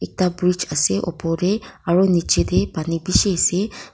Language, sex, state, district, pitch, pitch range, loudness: Nagamese, female, Nagaland, Kohima, 175 Hz, 160-185 Hz, -19 LUFS